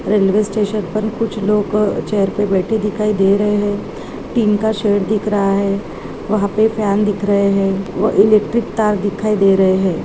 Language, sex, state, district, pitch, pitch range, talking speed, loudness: Hindi, female, Chhattisgarh, Balrampur, 205 Hz, 200-215 Hz, 185 wpm, -16 LUFS